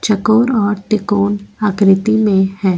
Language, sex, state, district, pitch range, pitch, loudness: Hindi, female, Goa, North and South Goa, 200-215 Hz, 205 Hz, -14 LUFS